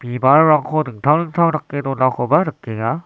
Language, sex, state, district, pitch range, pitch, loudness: Garo, male, Meghalaya, West Garo Hills, 125-155 Hz, 150 Hz, -17 LUFS